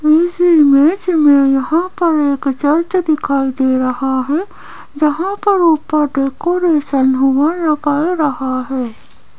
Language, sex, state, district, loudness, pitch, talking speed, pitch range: Hindi, female, Rajasthan, Jaipur, -14 LUFS, 300 Hz, 130 wpm, 270-335 Hz